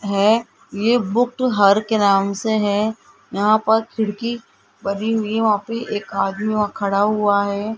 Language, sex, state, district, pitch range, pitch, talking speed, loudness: Hindi, female, Rajasthan, Jaipur, 200-225 Hz, 215 Hz, 170 wpm, -19 LUFS